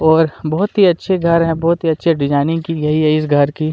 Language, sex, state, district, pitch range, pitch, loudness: Hindi, male, Chhattisgarh, Kabirdham, 155-170 Hz, 160 Hz, -15 LUFS